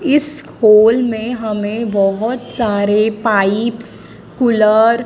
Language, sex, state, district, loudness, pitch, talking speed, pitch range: Hindi, female, Madhya Pradesh, Dhar, -14 LUFS, 225 Hz, 105 wpm, 215-240 Hz